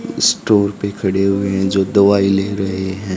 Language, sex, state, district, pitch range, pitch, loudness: Hindi, male, Haryana, Charkhi Dadri, 95-100 Hz, 100 Hz, -16 LUFS